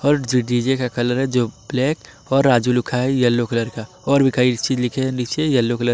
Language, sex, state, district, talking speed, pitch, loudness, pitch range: Hindi, male, Jharkhand, Palamu, 245 wpm, 125 Hz, -19 LUFS, 120-135 Hz